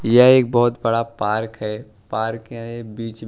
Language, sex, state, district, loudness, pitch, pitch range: Hindi, male, Maharashtra, Washim, -19 LUFS, 115 Hz, 110-120 Hz